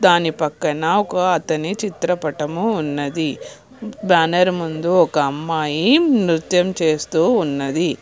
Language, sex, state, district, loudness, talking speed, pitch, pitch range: Telugu, female, Telangana, Hyderabad, -18 LUFS, 105 wpm, 165 Hz, 155-185 Hz